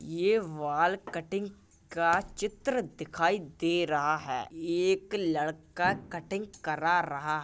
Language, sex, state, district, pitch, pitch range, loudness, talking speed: Hindi, male, Uttar Pradesh, Jalaun, 175 Hz, 160-210 Hz, -30 LUFS, 120 wpm